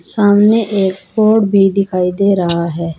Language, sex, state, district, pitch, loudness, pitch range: Hindi, female, Uttar Pradesh, Saharanpur, 195 Hz, -13 LUFS, 180-205 Hz